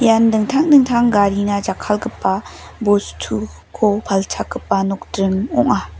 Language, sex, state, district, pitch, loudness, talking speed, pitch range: Garo, female, Meghalaya, West Garo Hills, 205 Hz, -17 LUFS, 90 wpm, 195-225 Hz